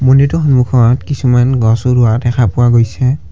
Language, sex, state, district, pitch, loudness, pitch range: Assamese, male, Assam, Kamrup Metropolitan, 125 Hz, -11 LUFS, 120-130 Hz